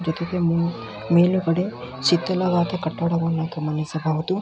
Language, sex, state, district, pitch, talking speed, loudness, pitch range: Kannada, male, Karnataka, Belgaum, 170 Hz, 80 wpm, -22 LUFS, 160-180 Hz